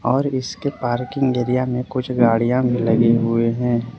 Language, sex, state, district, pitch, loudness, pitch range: Hindi, male, Arunachal Pradesh, Lower Dibang Valley, 125 Hz, -19 LUFS, 115-130 Hz